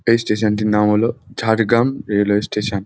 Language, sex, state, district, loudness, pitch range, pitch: Bengali, male, West Bengal, Jhargram, -17 LUFS, 105-115 Hz, 105 Hz